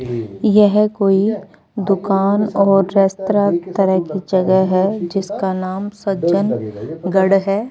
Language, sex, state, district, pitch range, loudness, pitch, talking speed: Hindi, female, Rajasthan, Jaipur, 185-200 Hz, -16 LUFS, 195 Hz, 100 wpm